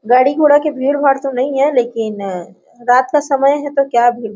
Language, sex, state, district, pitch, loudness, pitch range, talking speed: Hindi, female, Jharkhand, Sahebganj, 260 Hz, -14 LUFS, 240-280 Hz, 205 wpm